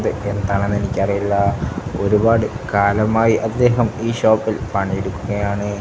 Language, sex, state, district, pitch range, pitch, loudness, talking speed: Malayalam, male, Kerala, Kasaragod, 100-110 Hz, 105 Hz, -18 LUFS, 70 wpm